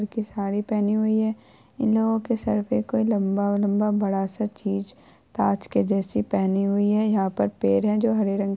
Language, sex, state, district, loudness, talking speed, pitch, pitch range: Hindi, female, Bihar, Saharsa, -24 LUFS, 210 wpm, 210 Hz, 200-220 Hz